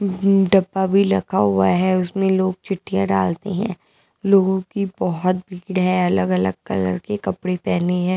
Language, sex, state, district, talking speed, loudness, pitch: Hindi, female, Maharashtra, Mumbai Suburban, 175 wpm, -19 LUFS, 185 Hz